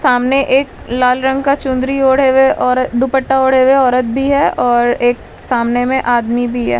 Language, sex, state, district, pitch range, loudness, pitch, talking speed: Hindi, female, Bihar, Patna, 245-265 Hz, -13 LUFS, 255 Hz, 195 wpm